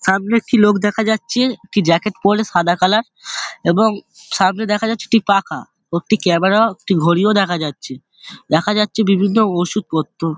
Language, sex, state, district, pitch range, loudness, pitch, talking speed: Bengali, male, West Bengal, Dakshin Dinajpur, 175-215 Hz, -16 LUFS, 200 Hz, 165 wpm